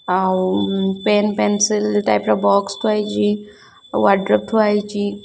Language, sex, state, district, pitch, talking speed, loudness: Odia, female, Odisha, Khordha, 195 Hz, 135 wpm, -18 LUFS